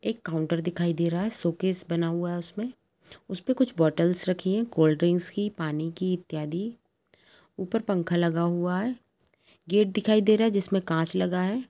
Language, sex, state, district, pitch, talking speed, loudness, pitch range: Hindi, female, Chhattisgarh, Kabirdham, 180 Hz, 180 wpm, -26 LUFS, 170-210 Hz